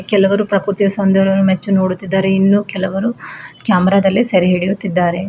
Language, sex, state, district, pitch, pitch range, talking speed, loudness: Kannada, female, Karnataka, Bidar, 195 Hz, 190-200 Hz, 125 wpm, -14 LUFS